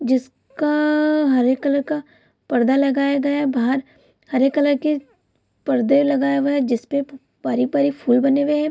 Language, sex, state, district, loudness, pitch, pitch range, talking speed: Hindi, female, Bihar, Kishanganj, -19 LUFS, 280 Hz, 260-290 Hz, 160 wpm